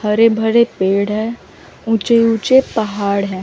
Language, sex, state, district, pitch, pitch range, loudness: Hindi, female, Chandigarh, Chandigarh, 220 Hz, 200-230 Hz, -15 LUFS